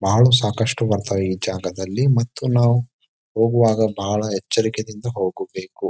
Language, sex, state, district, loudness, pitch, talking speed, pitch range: Kannada, male, Karnataka, Bijapur, -20 LUFS, 110 Hz, 110 wpm, 100-120 Hz